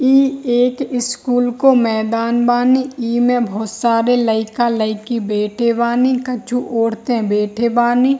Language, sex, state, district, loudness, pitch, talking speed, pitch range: Hindi, female, Bihar, Darbhanga, -16 LUFS, 240 Hz, 145 wpm, 230-245 Hz